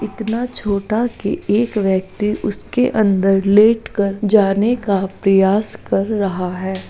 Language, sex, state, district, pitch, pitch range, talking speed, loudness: Hindi, female, Uttar Pradesh, Jalaun, 205 Hz, 195-220 Hz, 130 wpm, -17 LUFS